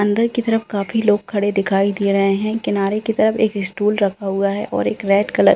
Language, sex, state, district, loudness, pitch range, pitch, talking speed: Hindi, female, Uttarakhand, Uttarkashi, -18 LUFS, 200-220 Hz, 205 Hz, 250 wpm